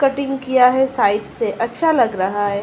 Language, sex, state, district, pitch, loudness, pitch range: Hindi, female, Uttar Pradesh, Ghazipur, 245 Hz, -17 LUFS, 205-265 Hz